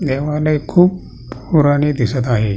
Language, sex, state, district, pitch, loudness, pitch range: Marathi, male, Maharashtra, Pune, 145 Hz, -15 LUFS, 130-155 Hz